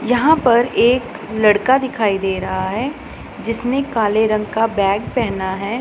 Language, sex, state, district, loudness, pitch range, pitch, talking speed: Hindi, female, Punjab, Pathankot, -17 LUFS, 205-250 Hz, 225 Hz, 155 wpm